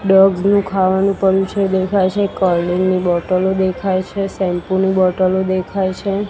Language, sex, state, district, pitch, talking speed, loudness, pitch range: Gujarati, female, Gujarat, Gandhinagar, 190 Hz, 160 wpm, -16 LUFS, 185-195 Hz